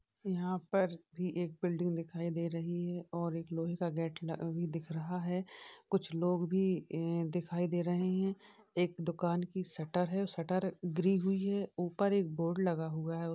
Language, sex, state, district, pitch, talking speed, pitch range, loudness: Hindi, male, Uttar Pradesh, Varanasi, 175 Hz, 190 wpm, 165-185 Hz, -36 LUFS